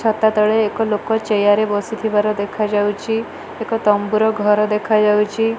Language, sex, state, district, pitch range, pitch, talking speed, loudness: Odia, female, Odisha, Malkangiri, 210-220 Hz, 215 Hz, 160 wpm, -17 LUFS